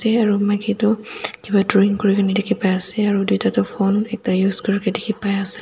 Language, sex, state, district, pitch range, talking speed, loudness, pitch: Nagamese, female, Nagaland, Dimapur, 195-215 Hz, 140 wpm, -18 LUFS, 205 Hz